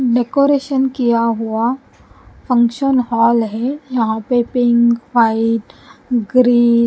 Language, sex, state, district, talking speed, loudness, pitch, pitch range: Hindi, female, Punjab, Pathankot, 105 wpm, -15 LUFS, 240 Hz, 230-255 Hz